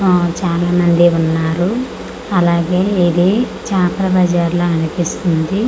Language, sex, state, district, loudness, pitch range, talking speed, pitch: Telugu, female, Andhra Pradesh, Manyam, -15 LUFS, 170-190 Hz, 105 wpm, 175 Hz